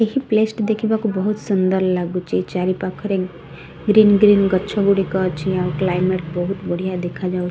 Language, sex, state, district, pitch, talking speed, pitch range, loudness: Odia, female, Odisha, Sambalpur, 185 Hz, 105 wpm, 180-210 Hz, -19 LUFS